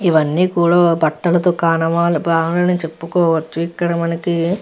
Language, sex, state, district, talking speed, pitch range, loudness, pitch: Telugu, female, Andhra Pradesh, Visakhapatnam, 115 wpm, 165-175 Hz, -16 LUFS, 170 Hz